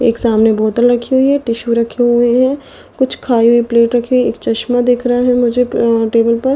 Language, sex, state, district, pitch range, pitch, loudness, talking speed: Hindi, female, Delhi, New Delhi, 230-250 Hz, 240 Hz, -13 LUFS, 210 wpm